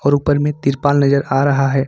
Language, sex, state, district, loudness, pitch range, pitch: Hindi, male, Jharkhand, Ranchi, -15 LUFS, 135-145 Hz, 140 Hz